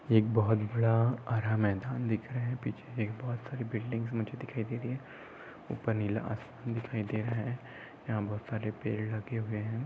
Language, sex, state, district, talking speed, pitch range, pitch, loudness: Hindi, male, Chhattisgarh, Sarguja, 195 wpm, 110-120 Hz, 115 Hz, -34 LUFS